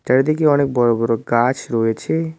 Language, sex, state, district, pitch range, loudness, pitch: Bengali, male, West Bengal, Cooch Behar, 115-150 Hz, -17 LUFS, 125 Hz